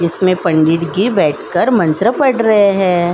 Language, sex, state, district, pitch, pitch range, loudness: Hindi, female, Uttar Pradesh, Jalaun, 185 Hz, 170-220 Hz, -13 LUFS